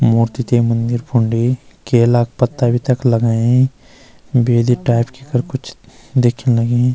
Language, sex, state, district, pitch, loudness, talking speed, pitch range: Garhwali, male, Uttarakhand, Uttarkashi, 120 Hz, -16 LUFS, 145 wpm, 115-125 Hz